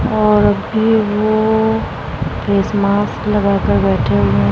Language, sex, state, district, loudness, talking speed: Hindi, female, Bihar, Vaishali, -15 LUFS, 145 wpm